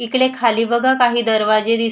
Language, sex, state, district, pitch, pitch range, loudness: Marathi, female, Maharashtra, Solapur, 235 Hz, 225-250 Hz, -16 LUFS